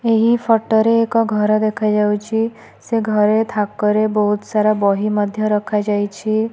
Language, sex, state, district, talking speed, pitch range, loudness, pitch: Odia, female, Odisha, Malkangiri, 130 wpm, 210-225 Hz, -17 LUFS, 215 Hz